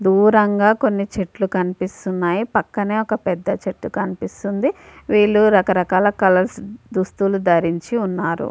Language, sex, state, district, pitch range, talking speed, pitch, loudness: Telugu, female, Andhra Pradesh, Visakhapatnam, 185-210 Hz, 135 wpm, 200 Hz, -18 LUFS